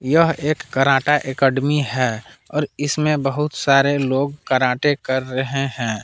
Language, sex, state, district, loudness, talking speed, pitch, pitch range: Hindi, male, Jharkhand, Palamu, -19 LUFS, 140 wpm, 135 Hz, 130-145 Hz